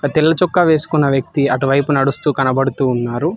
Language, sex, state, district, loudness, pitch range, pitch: Telugu, male, Telangana, Hyderabad, -15 LUFS, 135-155 Hz, 140 Hz